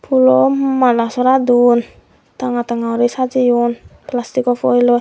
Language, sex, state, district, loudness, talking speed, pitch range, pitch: Chakma, female, Tripura, Dhalai, -15 LUFS, 120 wpm, 235-255 Hz, 245 Hz